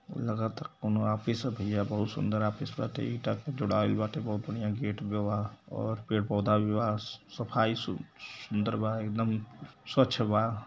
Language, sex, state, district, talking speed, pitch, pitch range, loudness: Hindi, male, Uttar Pradesh, Varanasi, 170 wpm, 110 Hz, 105-115 Hz, -32 LUFS